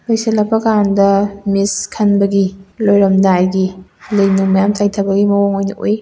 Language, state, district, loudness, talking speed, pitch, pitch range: Manipuri, Manipur, Imphal West, -14 LUFS, 110 wpm, 200 Hz, 195-205 Hz